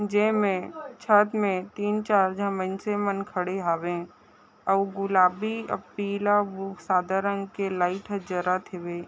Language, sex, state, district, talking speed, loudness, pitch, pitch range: Chhattisgarhi, female, Chhattisgarh, Raigarh, 150 wpm, -26 LUFS, 195 Hz, 185-205 Hz